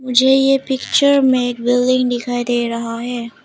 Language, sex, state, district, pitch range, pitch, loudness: Hindi, female, Arunachal Pradesh, Lower Dibang Valley, 240-265 Hz, 245 Hz, -16 LUFS